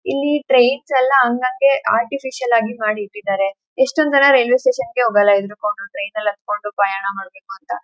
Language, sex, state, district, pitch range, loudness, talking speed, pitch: Kannada, female, Karnataka, Chamarajanagar, 205-265 Hz, -17 LUFS, 160 wpm, 235 Hz